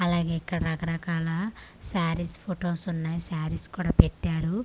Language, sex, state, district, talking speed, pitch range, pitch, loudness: Telugu, female, Andhra Pradesh, Manyam, 115 wpm, 165-175 Hz, 170 Hz, -28 LUFS